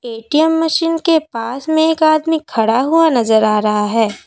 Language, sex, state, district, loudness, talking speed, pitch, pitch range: Hindi, female, Assam, Kamrup Metropolitan, -14 LUFS, 180 wpm, 295 Hz, 225-320 Hz